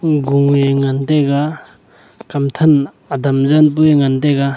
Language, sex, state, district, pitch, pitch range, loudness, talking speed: Wancho, male, Arunachal Pradesh, Longding, 140 Hz, 140-150 Hz, -14 LUFS, 170 wpm